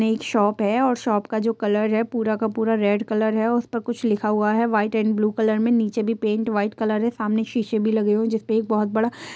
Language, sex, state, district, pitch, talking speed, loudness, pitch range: Hindi, female, Bihar, East Champaran, 220 Hz, 270 wpm, -22 LUFS, 215-230 Hz